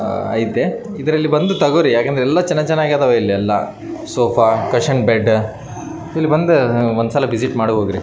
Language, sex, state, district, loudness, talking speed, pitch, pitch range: Kannada, male, Karnataka, Raichur, -16 LUFS, 125 wpm, 130 Hz, 115-155 Hz